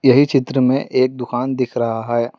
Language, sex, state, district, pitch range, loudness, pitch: Hindi, male, Telangana, Hyderabad, 120-135 Hz, -17 LUFS, 130 Hz